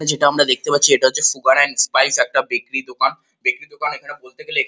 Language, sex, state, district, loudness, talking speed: Bengali, male, West Bengal, Kolkata, -17 LUFS, 230 wpm